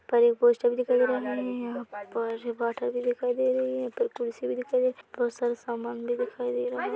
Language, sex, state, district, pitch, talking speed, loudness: Hindi, female, Chhattisgarh, Bilaspur, 255 Hz, 250 wpm, -28 LUFS